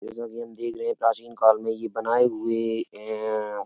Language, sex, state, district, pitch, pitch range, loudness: Hindi, male, Uttar Pradesh, Etah, 115 Hz, 110-115 Hz, -26 LUFS